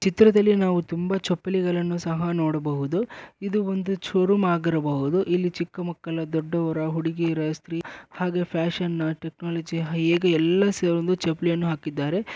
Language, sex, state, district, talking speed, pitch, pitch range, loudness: Kannada, male, Karnataka, Bellary, 125 wpm, 170 Hz, 165-185 Hz, -24 LUFS